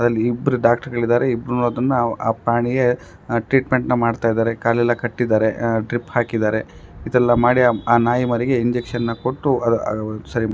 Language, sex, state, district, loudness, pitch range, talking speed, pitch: Kannada, male, Karnataka, Raichur, -19 LUFS, 115-125 Hz, 160 wpm, 120 Hz